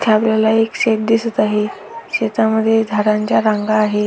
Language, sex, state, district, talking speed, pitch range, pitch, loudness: Marathi, female, Maharashtra, Aurangabad, 145 wpm, 210-225 Hz, 220 Hz, -16 LUFS